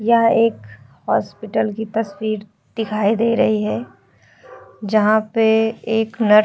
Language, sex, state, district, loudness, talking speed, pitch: Hindi, female, Uttar Pradesh, Hamirpur, -19 LUFS, 130 wpm, 215 Hz